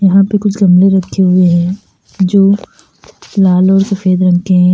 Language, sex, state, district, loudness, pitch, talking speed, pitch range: Hindi, male, Uttar Pradesh, Lalitpur, -10 LUFS, 190 Hz, 175 wpm, 185-195 Hz